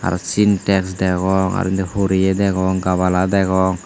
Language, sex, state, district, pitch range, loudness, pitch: Chakma, male, Tripura, Dhalai, 90-95 Hz, -17 LUFS, 95 Hz